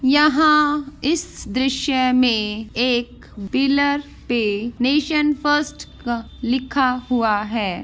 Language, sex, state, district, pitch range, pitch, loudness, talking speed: Hindi, female, Rajasthan, Nagaur, 235-290 Hz, 255 Hz, -19 LUFS, 100 wpm